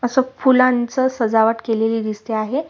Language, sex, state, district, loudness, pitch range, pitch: Marathi, female, Maharashtra, Solapur, -18 LUFS, 225-260 Hz, 240 Hz